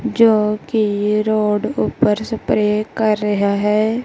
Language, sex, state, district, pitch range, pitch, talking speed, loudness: Punjabi, female, Punjab, Kapurthala, 210-220 Hz, 215 Hz, 120 wpm, -17 LUFS